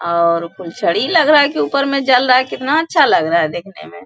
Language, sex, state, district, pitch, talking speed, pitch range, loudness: Hindi, female, Bihar, Bhagalpur, 260 Hz, 280 wpm, 170-285 Hz, -14 LUFS